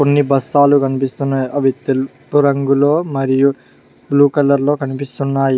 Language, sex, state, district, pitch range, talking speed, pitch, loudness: Telugu, male, Telangana, Mahabubabad, 135-145 Hz, 120 wpm, 140 Hz, -15 LUFS